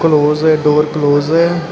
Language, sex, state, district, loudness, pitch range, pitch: Punjabi, male, Karnataka, Bangalore, -12 LUFS, 150-165 Hz, 155 Hz